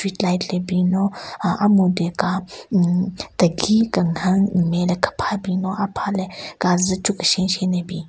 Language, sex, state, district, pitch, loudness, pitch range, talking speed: Rengma, female, Nagaland, Kohima, 185 Hz, -20 LUFS, 180-195 Hz, 180 wpm